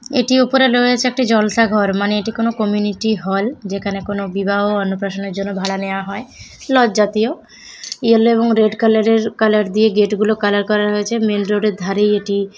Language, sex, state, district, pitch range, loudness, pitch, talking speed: Bengali, male, West Bengal, Jalpaiguri, 200-230 Hz, -16 LUFS, 210 Hz, 175 wpm